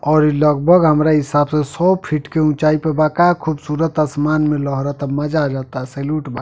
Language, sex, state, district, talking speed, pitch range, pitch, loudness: Bhojpuri, male, Uttar Pradesh, Deoria, 195 wpm, 145-155 Hz, 150 Hz, -16 LUFS